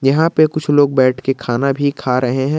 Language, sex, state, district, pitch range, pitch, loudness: Hindi, male, Jharkhand, Garhwa, 130-145 Hz, 135 Hz, -15 LUFS